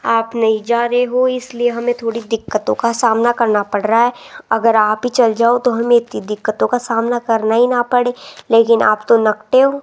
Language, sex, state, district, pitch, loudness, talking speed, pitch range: Hindi, female, Rajasthan, Jaipur, 235 Hz, -15 LUFS, 215 wpm, 225-245 Hz